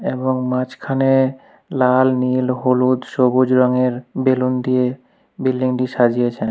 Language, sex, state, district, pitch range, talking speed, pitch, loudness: Bengali, male, West Bengal, Alipurduar, 125-130 Hz, 100 wpm, 130 Hz, -17 LUFS